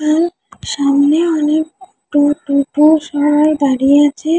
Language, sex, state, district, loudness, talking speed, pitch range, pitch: Bengali, female, West Bengal, Jhargram, -13 LUFS, 125 wpm, 290-320 Hz, 300 Hz